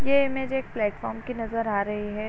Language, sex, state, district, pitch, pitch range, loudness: Hindi, female, Uttar Pradesh, Varanasi, 230 Hz, 210-265 Hz, -28 LUFS